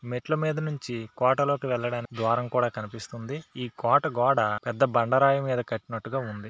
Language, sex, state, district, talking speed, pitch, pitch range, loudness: Telugu, male, Andhra Pradesh, Srikakulam, 150 wpm, 125 Hz, 115-135 Hz, -26 LUFS